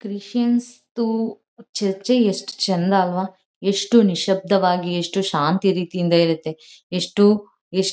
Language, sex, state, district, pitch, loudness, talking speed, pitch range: Kannada, female, Karnataka, Mysore, 195 Hz, -20 LUFS, 105 wpm, 180-210 Hz